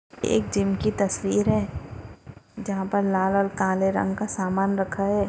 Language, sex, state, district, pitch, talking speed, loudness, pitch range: Hindi, female, Maharashtra, Aurangabad, 195 Hz, 145 wpm, -24 LUFS, 190-200 Hz